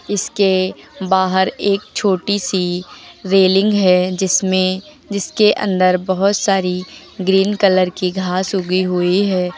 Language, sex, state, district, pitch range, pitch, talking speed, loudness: Hindi, female, Uttar Pradesh, Lucknow, 185-200 Hz, 190 Hz, 120 wpm, -16 LUFS